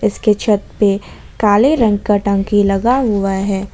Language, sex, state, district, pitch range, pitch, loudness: Hindi, female, Jharkhand, Ranchi, 200-215 Hz, 205 Hz, -15 LUFS